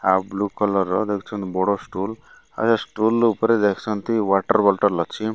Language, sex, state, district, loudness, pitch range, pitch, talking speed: Odia, male, Odisha, Malkangiri, -21 LUFS, 95-110 Hz, 105 Hz, 170 wpm